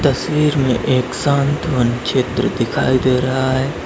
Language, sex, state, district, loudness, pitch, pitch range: Hindi, male, Uttar Pradesh, Lalitpur, -17 LUFS, 130 Hz, 130-140 Hz